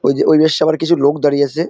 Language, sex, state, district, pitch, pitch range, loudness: Bengali, male, West Bengal, Jalpaiguri, 155 Hz, 145-160 Hz, -13 LUFS